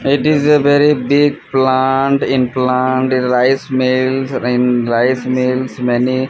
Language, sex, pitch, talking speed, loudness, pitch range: English, male, 130 Hz, 135 wpm, -14 LUFS, 125-135 Hz